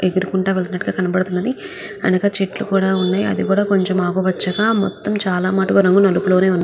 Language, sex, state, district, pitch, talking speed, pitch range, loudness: Telugu, female, Andhra Pradesh, Guntur, 190 Hz, 90 wpm, 185-200 Hz, -17 LUFS